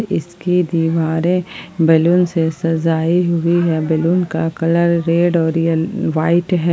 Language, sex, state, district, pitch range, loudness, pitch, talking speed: Hindi, female, Jharkhand, Palamu, 165-175 Hz, -16 LUFS, 165 Hz, 125 wpm